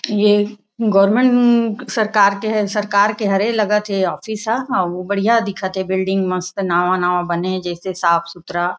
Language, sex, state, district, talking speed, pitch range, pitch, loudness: Chhattisgarhi, female, Chhattisgarh, Raigarh, 155 wpm, 185-215 Hz, 200 Hz, -17 LUFS